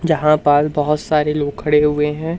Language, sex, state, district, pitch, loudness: Hindi, male, Madhya Pradesh, Umaria, 150 Hz, -16 LUFS